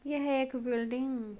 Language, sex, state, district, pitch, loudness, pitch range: Hindi, female, Uttar Pradesh, Jyotiba Phule Nagar, 255 Hz, -33 LUFS, 240-270 Hz